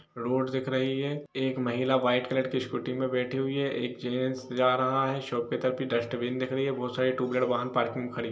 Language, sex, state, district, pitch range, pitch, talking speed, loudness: Hindi, female, Jharkhand, Jamtara, 125-130 Hz, 130 Hz, 265 wpm, -29 LUFS